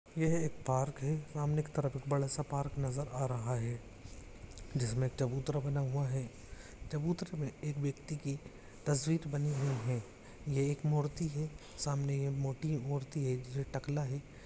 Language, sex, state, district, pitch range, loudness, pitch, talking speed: Hindi, male, Jharkhand, Jamtara, 125-150 Hz, -37 LUFS, 140 Hz, 160 wpm